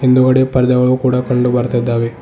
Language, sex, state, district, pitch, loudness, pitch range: Kannada, male, Karnataka, Bidar, 125 Hz, -13 LUFS, 120-130 Hz